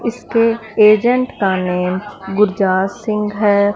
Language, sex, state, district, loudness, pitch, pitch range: Hindi, female, Punjab, Fazilka, -15 LUFS, 210 Hz, 195-230 Hz